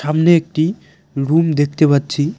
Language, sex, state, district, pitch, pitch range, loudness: Bengali, male, West Bengal, Cooch Behar, 155 Hz, 145-165 Hz, -15 LUFS